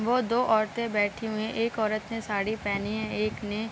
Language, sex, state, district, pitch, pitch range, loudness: Hindi, female, Bihar, Darbhanga, 215 Hz, 210-225 Hz, -28 LUFS